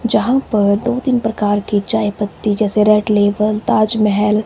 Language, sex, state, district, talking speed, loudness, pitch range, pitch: Hindi, male, Himachal Pradesh, Shimla, 160 wpm, -15 LUFS, 205-220 Hz, 210 Hz